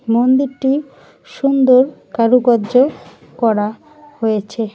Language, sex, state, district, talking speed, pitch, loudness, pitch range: Bengali, female, West Bengal, Cooch Behar, 65 wpm, 250 Hz, -15 LUFS, 225-275 Hz